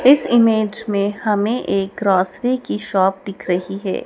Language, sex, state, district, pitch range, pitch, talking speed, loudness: Hindi, female, Madhya Pradesh, Dhar, 195-225 Hz, 205 Hz, 160 wpm, -18 LUFS